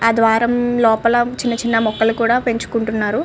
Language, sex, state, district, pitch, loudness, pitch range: Telugu, female, Andhra Pradesh, Srikakulam, 230 Hz, -16 LUFS, 225-240 Hz